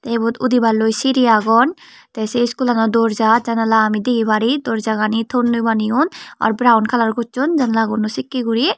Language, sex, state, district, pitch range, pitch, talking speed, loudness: Chakma, female, Tripura, Dhalai, 220-245 Hz, 230 Hz, 155 wpm, -16 LUFS